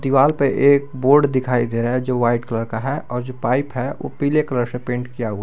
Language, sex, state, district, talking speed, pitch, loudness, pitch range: Hindi, male, Jharkhand, Garhwa, 265 wpm, 125 Hz, -19 LUFS, 120-140 Hz